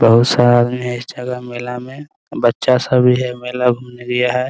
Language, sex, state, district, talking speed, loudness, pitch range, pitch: Hindi, male, Bihar, Muzaffarpur, 215 wpm, -16 LUFS, 120-125 Hz, 125 Hz